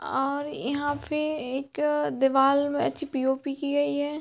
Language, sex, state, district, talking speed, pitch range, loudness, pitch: Hindi, female, Jharkhand, Sahebganj, 170 wpm, 270-295 Hz, -26 LUFS, 285 Hz